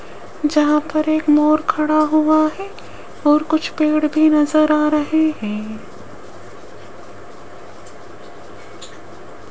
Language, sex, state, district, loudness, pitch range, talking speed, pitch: Hindi, female, Rajasthan, Jaipur, -16 LUFS, 300-310 Hz, 95 wpm, 305 Hz